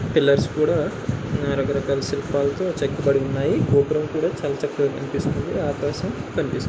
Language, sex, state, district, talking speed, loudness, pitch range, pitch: Telugu, male, Andhra Pradesh, Anantapur, 135 wpm, -22 LUFS, 140-145 Hz, 140 Hz